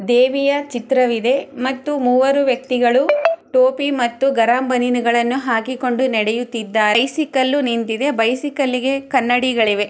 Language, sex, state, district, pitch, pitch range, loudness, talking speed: Kannada, female, Karnataka, Chamarajanagar, 255 Hz, 240-270 Hz, -17 LUFS, 95 wpm